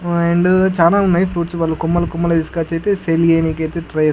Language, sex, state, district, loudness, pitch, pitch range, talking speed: Telugu, male, Andhra Pradesh, Guntur, -16 LUFS, 170 Hz, 165-175 Hz, 175 wpm